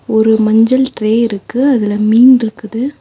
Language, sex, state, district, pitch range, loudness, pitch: Tamil, female, Tamil Nadu, Nilgiris, 220-255 Hz, -11 LUFS, 225 Hz